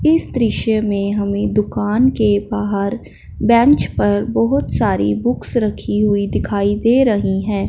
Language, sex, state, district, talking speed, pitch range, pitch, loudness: Hindi, female, Punjab, Fazilka, 140 wpm, 200-225 Hz, 205 Hz, -16 LUFS